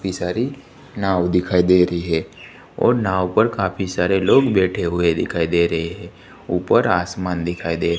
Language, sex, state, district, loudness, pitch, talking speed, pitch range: Hindi, male, Gujarat, Gandhinagar, -19 LUFS, 90 Hz, 175 wpm, 85-95 Hz